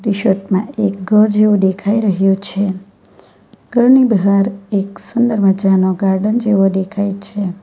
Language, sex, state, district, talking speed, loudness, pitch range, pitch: Gujarati, female, Gujarat, Valsad, 120 wpm, -14 LUFS, 195-210 Hz, 200 Hz